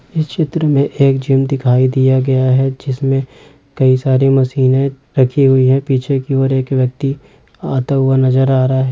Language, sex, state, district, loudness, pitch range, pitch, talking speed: Hindi, male, Chhattisgarh, Rajnandgaon, -14 LUFS, 130-135 Hz, 135 Hz, 180 wpm